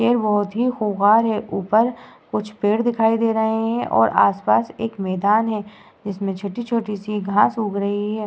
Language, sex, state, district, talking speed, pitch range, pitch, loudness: Hindi, female, Uttar Pradesh, Muzaffarnagar, 175 wpm, 205-225 Hz, 215 Hz, -20 LUFS